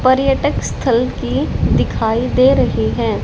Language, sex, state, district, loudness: Hindi, female, Haryana, Charkhi Dadri, -16 LUFS